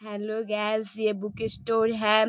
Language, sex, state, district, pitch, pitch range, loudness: Hindi, female, Bihar, Darbhanga, 215 Hz, 210-220 Hz, -27 LUFS